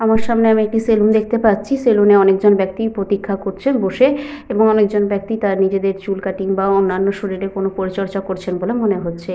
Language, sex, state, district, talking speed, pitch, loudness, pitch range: Bengali, female, Jharkhand, Sahebganj, 190 wpm, 200 Hz, -16 LUFS, 195-220 Hz